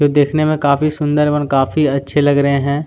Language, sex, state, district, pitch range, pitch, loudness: Hindi, male, Chhattisgarh, Kabirdham, 140-150 Hz, 145 Hz, -15 LUFS